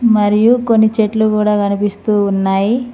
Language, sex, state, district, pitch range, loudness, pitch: Telugu, female, Telangana, Mahabubabad, 205-225 Hz, -13 LUFS, 210 Hz